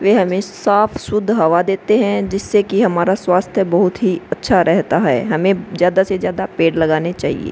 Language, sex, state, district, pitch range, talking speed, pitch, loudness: Hindi, female, Uttar Pradesh, Hamirpur, 180-205 Hz, 185 wpm, 195 Hz, -16 LUFS